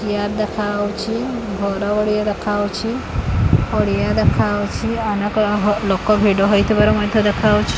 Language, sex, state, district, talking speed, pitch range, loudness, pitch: Odia, female, Odisha, Khordha, 125 wpm, 200-215 Hz, -18 LUFS, 205 Hz